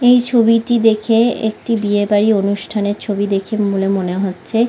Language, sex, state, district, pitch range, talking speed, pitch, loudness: Bengali, female, West Bengal, Malda, 200-230 Hz, 140 wpm, 215 Hz, -16 LUFS